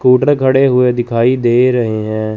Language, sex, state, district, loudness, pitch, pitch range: Hindi, male, Chandigarh, Chandigarh, -12 LUFS, 125 Hz, 115-130 Hz